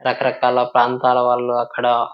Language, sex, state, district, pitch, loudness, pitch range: Telugu, male, Telangana, Nalgonda, 125 Hz, -17 LUFS, 120-125 Hz